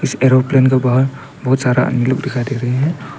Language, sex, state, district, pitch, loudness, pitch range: Hindi, male, Arunachal Pradesh, Papum Pare, 130 Hz, -15 LUFS, 125-135 Hz